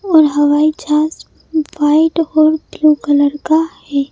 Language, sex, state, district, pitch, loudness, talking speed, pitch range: Hindi, female, Madhya Pradesh, Bhopal, 310 Hz, -14 LUFS, 130 wpm, 295-315 Hz